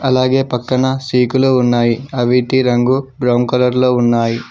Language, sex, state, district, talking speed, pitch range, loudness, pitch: Telugu, male, Telangana, Mahabubabad, 135 wpm, 120-130 Hz, -14 LUFS, 125 Hz